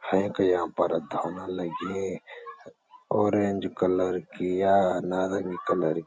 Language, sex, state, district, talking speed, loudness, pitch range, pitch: Garhwali, male, Uttarakhand, Uttarkashi, 100 wpm, -27 LUFS, 90-95 Hz, 95 Hz